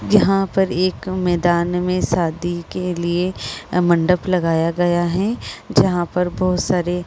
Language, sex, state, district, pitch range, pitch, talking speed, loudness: Hindi, female, Chhattisgarh, Rajnandgaon, 175-185 Hz, 180 Hz, 145 wpm, -19 LUFS